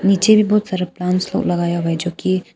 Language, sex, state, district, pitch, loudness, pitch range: Hindi, female, Arunachal Pradesh, Papum Pare, 185 Hz, -17 LUFS, 175-200 Hz